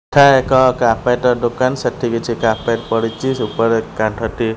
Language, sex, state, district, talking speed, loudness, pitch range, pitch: Odia, male, Odisha, Khordha, 155 wpm, -16 LUFS, 115-130 Hz, 115 Hz